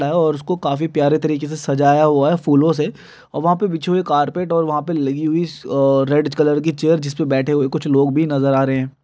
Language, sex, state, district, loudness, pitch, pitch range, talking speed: Hindi, male, Uttar Pradesh, Hamirpur, -17 LUFS, 150 Hz, 140-160 Hz, 260 wpm